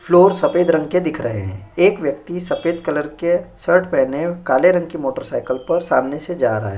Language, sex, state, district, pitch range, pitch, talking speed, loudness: Hindi, male, Uttar Pradesh, Jyotiba Phule Nagar, 140-180 Hz, 170 Hz, 210 wpm, -18 LUFS